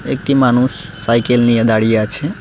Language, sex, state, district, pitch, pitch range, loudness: Bengali, male, West Bengal, Cooch Behar, 120 Hz, 115-130 Hz, -14 LUFS